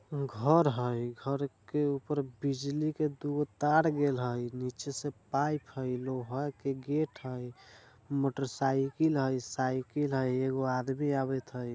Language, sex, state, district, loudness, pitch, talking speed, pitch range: Bajjika, male, Bihar, Vaishali, -32 LUFS, 135 Hz, 145 wpm, 125-145 Hz